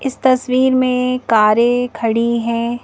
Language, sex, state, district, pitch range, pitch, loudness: Hindi, female, Madhya Pradesh, Bhopal, 235-255 Hz, 245 Hz, -15 LUFS